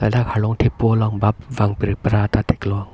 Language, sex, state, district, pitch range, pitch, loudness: Karbi, male, Assam, Karbi Anglong, 105-115 Hz, 110 Hz, -19 LUFS